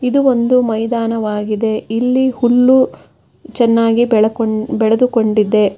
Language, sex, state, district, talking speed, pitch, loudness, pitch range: Kannada, female, Karnataka, Bangalore, 85 wpm, 230 Hz, -14 LUFS, 220-250 Hz